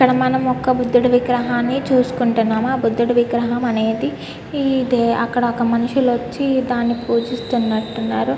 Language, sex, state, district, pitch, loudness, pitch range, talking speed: Telugu, female, Andhra Pradesh, Guntur, 245 Hz, -18 LUFS, 235-255 Hz, 120 wpm